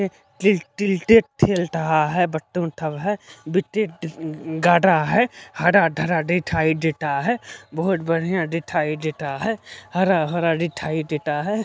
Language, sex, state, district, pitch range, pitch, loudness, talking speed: Hindi, male, Bihar, Supaul, 160-190 Hz, 170 Hz, -21 LUFS, 125 wpm